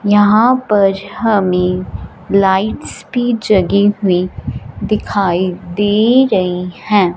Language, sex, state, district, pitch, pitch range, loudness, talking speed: Hindi, female, Punjab, Fazilka, 200 Hz, 180-210 Hz, -14 LUFS, 85 wpm